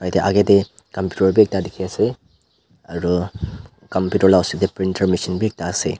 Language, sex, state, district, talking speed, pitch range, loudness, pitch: Nagamese, male, Nagaland, Dimapur, 180 wpm, 90-100 Hz, -19 LUFS, 95 Hz